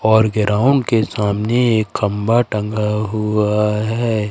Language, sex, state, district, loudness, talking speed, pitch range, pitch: Hindi, male, Madhya Pradesh, Katni, -17 LUFS, 125 wpm, 105-115 Hz, 110 Hz